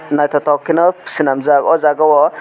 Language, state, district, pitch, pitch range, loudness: Kokborok, Tripura, West Tripura, 150 Hz, 145-160 Hz, -13 LUFS